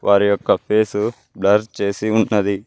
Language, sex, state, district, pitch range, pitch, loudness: Telugu, male, Telangana, Mahabubabad, 100-110 Hz, 105 Hz, -18 LUFS